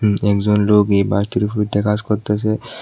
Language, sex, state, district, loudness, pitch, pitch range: Bengali, male, Tripura, West Tripura, -17 LUFS, 105 Hz, 100-105 Hz